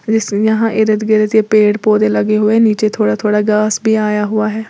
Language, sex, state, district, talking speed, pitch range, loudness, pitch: Hindi, female, Uttar Pradesh, Lalitpur, 215 wpm, 210-220 Hz, -13 LUFS, 215 Hz